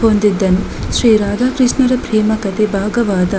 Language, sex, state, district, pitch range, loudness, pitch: Kannada, female, Karnataka, Dakshina Kannada, 200-235 Hz, -14 LUFS, 215 Hz